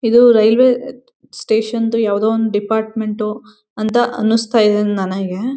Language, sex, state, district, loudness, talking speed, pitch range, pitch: Kannada, female, Karnataka, Mysore, -15 LUFS, 140 wpm, 215-240 Hz, 220 Hz